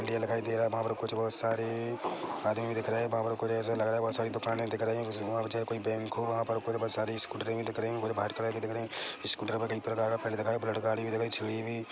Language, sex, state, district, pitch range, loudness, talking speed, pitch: Hindi, male, Chhattisgarh, Rajnandgaon, 110-115 Hz, -33 LUFS, 325 wpm, 115 Hz